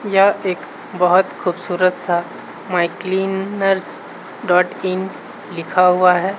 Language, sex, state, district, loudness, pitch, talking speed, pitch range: Hindi, male, Bihar, Saharsa, -18 LUFS, 185 Hz, 105 wpm, 180-190 Hz